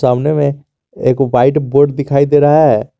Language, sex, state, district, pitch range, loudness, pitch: Hindi, male, Jharkhand, Garhwa, 130-145 Hz, -12 LUFS, 140 Hz